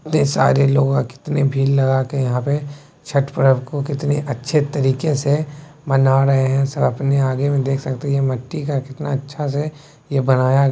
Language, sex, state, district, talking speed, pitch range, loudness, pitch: Maithili, male, Bihar, Begusarai, 195 wpm, 135-145 Hz, -18 LUFS, 140 Hz